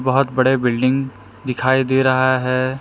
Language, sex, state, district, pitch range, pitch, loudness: Hindi, male, Jharkhand, Palamu, 125-130 Hz, 130 Hz, -17 LUFS